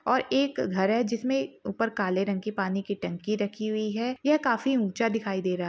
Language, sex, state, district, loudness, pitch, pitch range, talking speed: Hindi, female, Chhattisgarh, Balrampur, -28 LUFS, 215 Hz, 195-240 Hz, 230 wpm